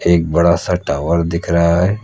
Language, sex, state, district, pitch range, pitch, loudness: Hindi, male, Uttar Pradesh, Lucknow, 85-90 Hz, 85 Hz, -15 LUFS